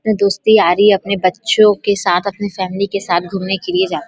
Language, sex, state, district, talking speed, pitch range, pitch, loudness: Hindi, female, Chhattisgarh, Bilaspur, 235 wpm, 190-210 Hz, 200 Hz, -14 LUFS